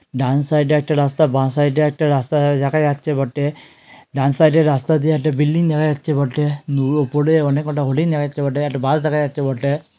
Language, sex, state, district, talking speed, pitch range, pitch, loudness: Bengali, male, West Bengal, Jhargram, 220 wpm, 140-155 Hz, 145 Hz, -17 LUFS